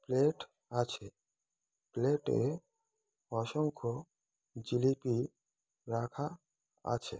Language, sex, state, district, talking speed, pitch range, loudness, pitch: Bengali, male, West Bengal, Kolkata, 65 wpm, 120-155 Hz, -36 LUFS, 135 Hz